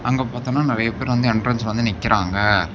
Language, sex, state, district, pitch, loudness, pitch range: Tamil, male, Tamil Nadu, Namakkal, 115 Hz, -20 LUFS, 110-125 Hz